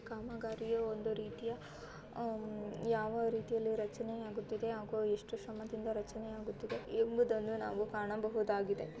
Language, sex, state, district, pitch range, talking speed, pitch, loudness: Kannada, female, Karnataka, Bellary, 215-225 Hz, 100 wpm, 220 Hz, -39 LUFS